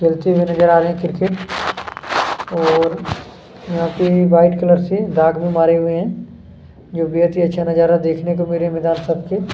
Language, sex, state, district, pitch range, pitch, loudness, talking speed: Hindi, male, Chhattisgarh, Kabirdham, 165-175 Hz, 170 Hz, -16 LUFS, 200 wpm